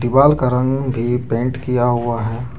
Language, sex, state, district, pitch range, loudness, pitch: Hindi, male, Jharkhand, Deoghar, 120-130 Hz, -17 LUFS, 125 Hz